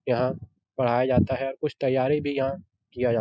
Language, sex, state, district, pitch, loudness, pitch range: Hindi, male, Bihar, Jahanabad, 130 Hz, -25 LUFS, 120-135 Hz